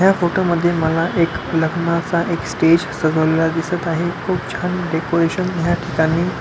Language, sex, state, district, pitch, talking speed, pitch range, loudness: Marathi, male, Maharashtra, Pune, 170 Hz, 150 wpm, 165-175 Hz, -18 LUFS